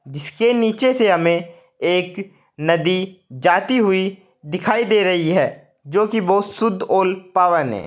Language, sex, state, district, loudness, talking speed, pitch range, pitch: Hindi, male, Uttar Pradesh, Saharanpur, -18 LUFS, 145 wpm, 170-210 Hz, 185 Hz